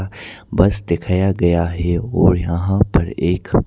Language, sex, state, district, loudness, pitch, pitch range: Hindi, male, Arunachal Pradesh, Papum Pare, -17 LUFS, 90 Hz, 85-100 Hz